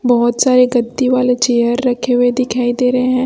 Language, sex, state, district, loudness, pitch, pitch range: Hindi, female, Chhattisgarh, Raipur, -14 LUFS, 250 Hz, 245-255 Hz